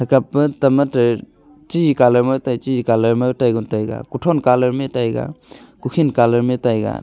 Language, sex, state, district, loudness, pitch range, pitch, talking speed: Wancho, male, Arunachal Pradesh, Longding, -17 LUFS, 120-135 Hz, 125 Hz, 160 wpm